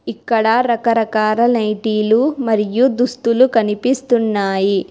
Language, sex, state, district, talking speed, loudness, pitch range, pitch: Telugu, female, Telangana, Hyderabad, 75 wpm, -16 LUFS, 215-245 Hz, 225 Hz